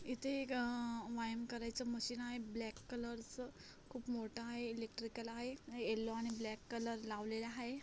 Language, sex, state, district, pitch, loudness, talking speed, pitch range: Marathi, female, Maharashtra, Solapur, 235 Hz, -44 LUFS, 155 wpm, 230-245 Hz